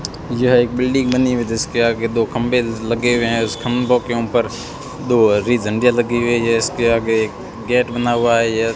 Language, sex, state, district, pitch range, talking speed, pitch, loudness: Hindi, male, Rajasthan, Bikaner, 115-125 Hz, 200 wpm, 120 Hz, -17 LUFS